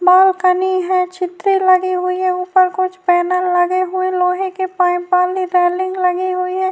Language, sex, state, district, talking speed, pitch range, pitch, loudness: Urdu, female, Bihar, Saharsa, 185 wpm, 360-370 Hz, 365 Hz, -16 LUFS